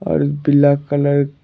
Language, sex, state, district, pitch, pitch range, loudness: Hindi, male, Jharkhand, Deoghar, 145 Hz, 140-145 Hz, -16 LUFS